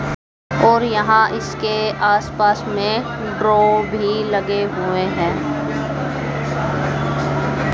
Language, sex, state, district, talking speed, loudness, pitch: Hindi, female, Haryana, Charkhi Dadri, 70 wpm, -18 LUFS, 205 Hz